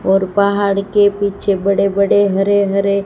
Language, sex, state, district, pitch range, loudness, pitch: Hindi, female, Gujarat, Gandhinagar, 195-200 Hz, -14 LUFS, 200 Hz